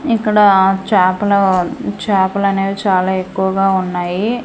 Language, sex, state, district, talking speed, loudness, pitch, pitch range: Telugu, female, Andhra Pradesh, Manyam, 95 wpm, -14 LUFS, 195 Hz, 190-200 Hz